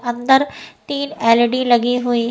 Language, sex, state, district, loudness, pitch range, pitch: Hindi, female, Uttar Pradesh, Etah, -16 LUFS, 240-265 Hz, 245 Hz